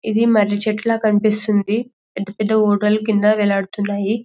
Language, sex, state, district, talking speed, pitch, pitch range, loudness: Telugu, female, Telangana, Karimnagar, 140 wpm, 215 Hz, 205-220 Hz, -17 LUFS